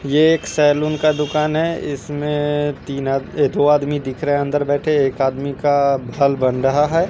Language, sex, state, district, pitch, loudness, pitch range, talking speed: Hindi, male, Bihar, East Champaran, 145 Hz, -18 LUFS, 140-150 Hz, 205 wpm